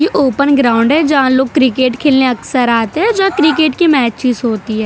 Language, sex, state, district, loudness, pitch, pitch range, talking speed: Hindi, female, Gujarat, Valsad, -12 LUFS, 265 Hz, 245-300 Hz, 210 wpm